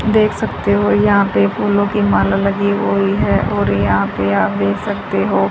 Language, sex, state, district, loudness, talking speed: Hindi, female, Haryana, Charkhi Dadri, -15 LUFS, 195 wpm